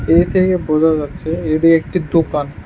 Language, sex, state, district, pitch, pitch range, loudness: Bengali, male, Tripura, West Tripura, 165 Hz, 155-170 Hz, -15 LUFS